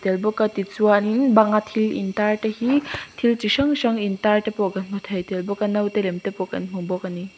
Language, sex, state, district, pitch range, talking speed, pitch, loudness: Mizo, female, Mizoram, Aizawl, 195-220 Hz, 275 wpm, 210 Hz, -22 LUFS